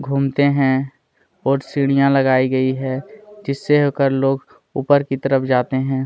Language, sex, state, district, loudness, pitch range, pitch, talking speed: Hindi, male, Chhattisgarh, Kabirdham, -18 LUFS, 130-140 Hz, 135 Hz, 150 wpm